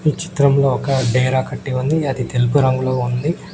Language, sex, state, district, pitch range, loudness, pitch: Telugu, male, Telangana, Mahabubabad, 130-140 Hz, -17 LUFS, 135 Hz